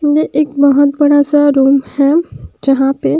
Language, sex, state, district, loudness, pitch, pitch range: Hindi, female, Bihar, West Champaran, -11 LUFS, 285 Hz, 275-295 Hz